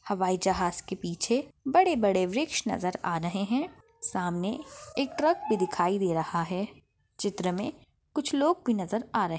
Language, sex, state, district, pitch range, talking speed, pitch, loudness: Hindi, female, Chhattisgarh, Bastar, 180-280 Hz, 180 wpm, 200 Hz, -29 LUFS